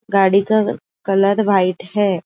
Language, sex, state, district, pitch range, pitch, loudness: Hindi, female, Maharashtra, Aurangabad, 195-210 Hz, 195 Hz, -16 LUFS